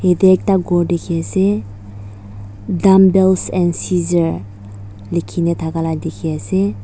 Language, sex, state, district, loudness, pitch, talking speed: Nagamese, female, Nagaland, Dimapur, -16 LUFS, 165 Hz, 90 wpm